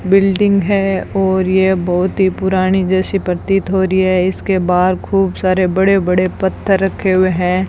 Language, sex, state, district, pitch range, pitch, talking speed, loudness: Hindi, female, Rajasthan, Bikaner, 185-195 Hz, 190 Hz, 170 wpm, -14 LUFS